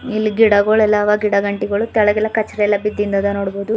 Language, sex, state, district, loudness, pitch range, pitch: Kannada, female, Karnataka, Bidar, -16 LUFS, 205-215 Hz, 210 Hz